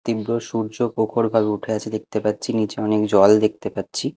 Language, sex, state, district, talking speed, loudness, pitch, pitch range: Bengali, male, Odisha, Nuapada, 175 wpm, -21 LUFS, 110 Hz, 105-115 Hz